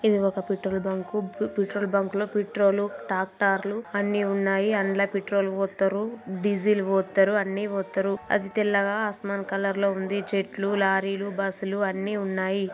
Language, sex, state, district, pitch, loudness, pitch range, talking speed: Telugu, female, Telangana, Karimnagar, 200 Hz, -26 LUFS, 195-205 Hz, 130 wpm